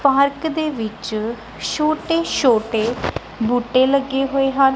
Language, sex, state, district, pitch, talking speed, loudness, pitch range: Punjabi, female, Punjab, Kapurthala, 270 Hz, 115 wpm, -19 LUFS, 235-280 Hz